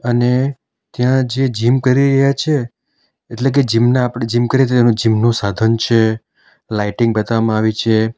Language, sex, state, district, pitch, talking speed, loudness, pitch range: Gujarati, male, Gujarat, Valsad, 120 Hz, 160 wpm, -15 LUFS, 110-130 Hz